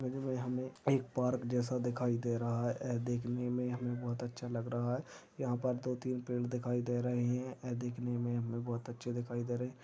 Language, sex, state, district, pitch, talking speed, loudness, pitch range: Hindi, male, Maharashtra, Chandrapur, 125 Hz, 215 wpm, -37 LUFS, 120-125 Hz